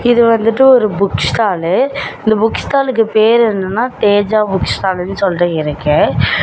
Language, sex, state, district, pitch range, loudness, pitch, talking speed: Tamil, female, Tamil Nadu, Namakkal, 190-230 Hz, -13 LUFS, 215 Hz, 140 wpm